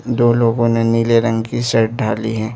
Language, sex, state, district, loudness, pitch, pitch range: Hindi, male, Arunachal Pradesh, Lower Dibang Valley, -16 LUFS, 115 Hz, 115-120 Hz